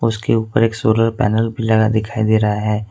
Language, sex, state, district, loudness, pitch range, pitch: Hindi, male, Jharkhand, Ranchi, -17 LUFS, 110-115 Hz, 110 Hz